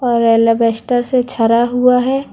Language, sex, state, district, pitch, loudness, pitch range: Hindi, female, Jharkhand, Deoghar, 245 Hz, -13 LUFS, 230-250 Hz